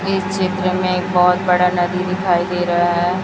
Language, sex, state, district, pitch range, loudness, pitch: Hindi, female, Chhattisgarh, Raipur, 175-185 Hz, -17 LUFS, 180 Hz